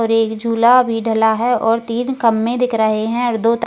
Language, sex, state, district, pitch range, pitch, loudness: Hindi, female, Goa, North and South Goa, 225-240 Hz, 230 Hz, -16 LUFS